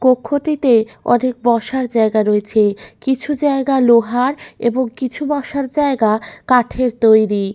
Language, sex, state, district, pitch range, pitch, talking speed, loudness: Bengali, female, West Bengal, Malda, 225-270 Hz, 245 Hz, 110 wpm, -16 LUFS